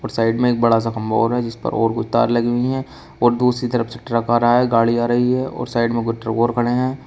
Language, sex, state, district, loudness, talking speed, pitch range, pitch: Hindi, male, Uttar Pradesh, Shamli, -18 LUFS, 315 wpm, 115-120 Hz, 120 Hz